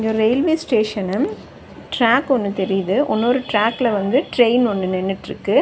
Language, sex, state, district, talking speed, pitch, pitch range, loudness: Tamil, female, Tamil Nadu, Chennai, 140 wpm, 225 Hz, 200-255 Hz, -18 LUFS